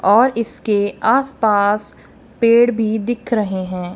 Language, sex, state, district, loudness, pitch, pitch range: Hindi, female, Punjab, Kapurthala, -17 LUFS, 220 Hz, 205-235 Hz